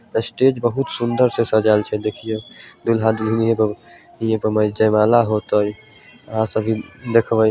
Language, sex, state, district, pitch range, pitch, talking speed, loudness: Maithili, male, Bihar, Samastipur, 110-115 Hz, 110 Hz, 145 wpm, -19 LUFS